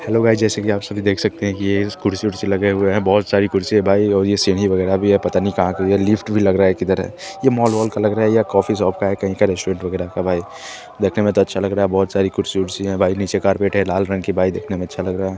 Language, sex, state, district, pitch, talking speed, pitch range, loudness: Hindi, male, Chandigarh, Chandigarh, 100 Hz, 330 wpm, 95-105 Hz, -18 LUFS